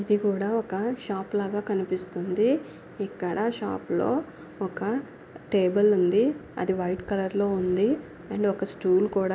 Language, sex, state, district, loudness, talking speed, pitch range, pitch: Telugu, female, Andhra Pradesh, Anantapur, -27 LUFS, 120 wpm, 190-210 Hz, 200 Hz